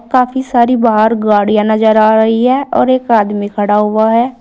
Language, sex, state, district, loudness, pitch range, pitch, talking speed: Hindi, female, Uttar Pradesh, Saharanpur, -11 LUFS, 215-245 Hz, 220 Hz, 190 wpm